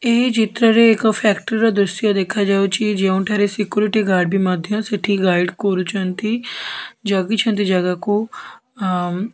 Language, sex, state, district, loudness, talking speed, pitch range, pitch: Odia, female, Odisha, Khordha, -18 LUFS, 130 wpm, 190-220 Hz, 205 Hz